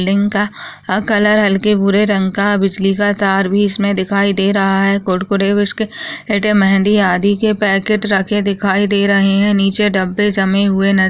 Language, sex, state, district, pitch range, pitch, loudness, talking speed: Hindi, female, Rajasthan, Churu, 195-205 Hz, 200 Hz, -13 LUFS, 185 wpm